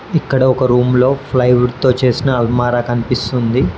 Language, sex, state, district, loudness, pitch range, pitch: Telugu, male, Telangana, Komaram Bheem, -14 LUFS, 120-130 Hz, 125 Hz